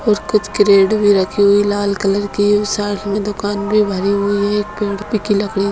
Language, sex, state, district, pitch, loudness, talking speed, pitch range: Hindi, female, Bihar, Saran, 205 Hz, -15 LUFS, 220 wpm, 200-210 Hz